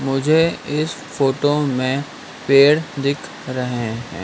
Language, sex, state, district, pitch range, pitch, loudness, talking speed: Hindi, male, Madhya Pradesh, Dhar, 130-150 Hz, 140 Hz, -19 LUFS, 115 wpm